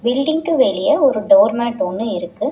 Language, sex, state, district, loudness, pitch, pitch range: Tamil, female, Tamil Nadu, Chennai, -16 LUFS, 280 Hz, 240-300 Hz